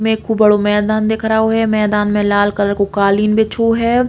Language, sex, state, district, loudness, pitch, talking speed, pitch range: Bundeli, female, Uttar Pradesh, Hamirpur, -14 LUFS, 215 Hz, 220 wpm, 205-220 Hz